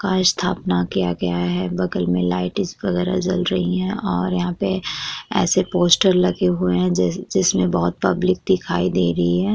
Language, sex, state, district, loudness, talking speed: Hindi, female, Uttar Pradesh, Jyotiba Phule Nagar, -20 LUFS, 175 wpm